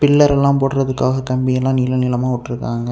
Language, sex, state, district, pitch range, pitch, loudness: Tamil, male, Tamil Nadu, Kanyakumari, 125-135 Hz, 130 Hz, -17 LUFS